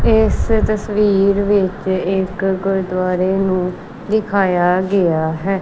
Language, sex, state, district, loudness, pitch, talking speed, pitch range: Punjabi, female, Punjab, Kapurthala, -17 LUFS, 190 Hz, 95 wpm, 185-200 Hz